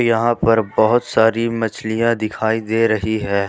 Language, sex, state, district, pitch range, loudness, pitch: Hindi, male, Jharkhand, Ranchi, 110-115 Hz, -17 LUFS, 115 Hz